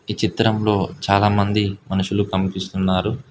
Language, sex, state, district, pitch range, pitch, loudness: Telugu, male, Telangana, Hyderabad, 95-105 Hz, 100 Hz, -20 LUFS